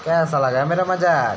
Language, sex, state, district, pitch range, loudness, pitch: Hindi, male, Uttar Pradesh, Muzaffarnagar, 145-180 Hz, -19 LUFS, 165 Hz